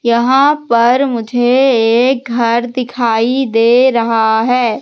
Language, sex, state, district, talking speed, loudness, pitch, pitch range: Hindi, female, Madhya Pradesh, Katni, 110 wpm, -12 LUFS, 240 Hz, 230-255 Hz